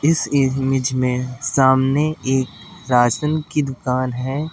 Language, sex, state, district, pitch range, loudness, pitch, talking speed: Hindi, male, Delhi, New Delhi, 125-150 Hz, -19 LUFS, 135 Hz, 120 wpm